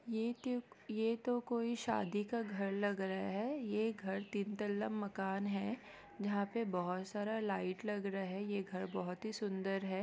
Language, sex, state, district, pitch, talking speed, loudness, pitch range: Hindi, female, Bihar, East Champaran, 205 Hz, 185 wpm, -40 LUFS, 195-225 Hz